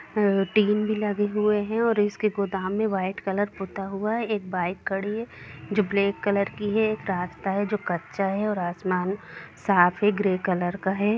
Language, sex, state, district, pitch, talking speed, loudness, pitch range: Hindi, female, Jharkhand, Jamtara, 200 Hz, 175 wpm, -25 LUFS, 190-210 Hz